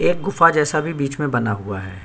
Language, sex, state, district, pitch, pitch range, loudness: Hindi, male, Chhattisgarh, Sukma, 145 Hz, 100-165 Hz, -19 LUFS